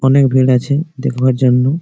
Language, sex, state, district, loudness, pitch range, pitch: Bengali, male, West Bengal, Malda, -13 LUFS, 130-140 Hz, 130 Hz